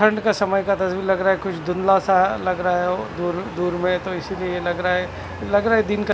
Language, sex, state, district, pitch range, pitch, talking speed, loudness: Hindi, male, Punjab, Fazilka, 180-195 Hz, 185 Hz, 265 wpm, -21 LUFS